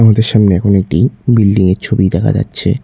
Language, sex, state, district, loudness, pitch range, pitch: Bengali, male, West Bengal, Cooch Behar, -12 LUFS, 95-115 Hz, 105 Hz